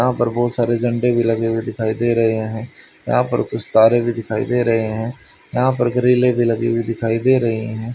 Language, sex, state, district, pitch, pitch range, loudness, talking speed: Hindi, male, Haryana, Charkhi Dadri, 115 Hz, 115-120 Hz, -18 LUFS, 235 wpm